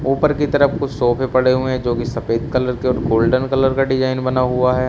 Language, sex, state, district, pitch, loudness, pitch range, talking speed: Hindi, male, Uttar Pradesh, Shamli, 130 Hz, -17 LUFS, 125-135 Hz, 245 wpm